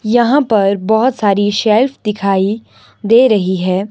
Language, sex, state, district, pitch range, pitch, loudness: Hindi, male, Himachal Pradesh, Shimla, 200-235 Hz, 210 Hz, -13 LUFS